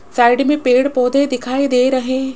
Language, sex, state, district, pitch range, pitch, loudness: Hindi, female, Rajasthan, Jaipur, 250-270 Hz, 260 Hz, -15 LUFS